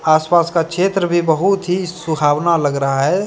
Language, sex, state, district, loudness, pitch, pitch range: Hindi, male, Jharkhand, Deoghar, -16 LUFS, 170 Hz, 155-180 Hz